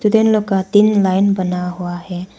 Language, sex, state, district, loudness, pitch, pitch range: Hindi, female, Arunachal Pradesh, Papum Pare, -16 LUFS, 190 Hz, 180-210 Hz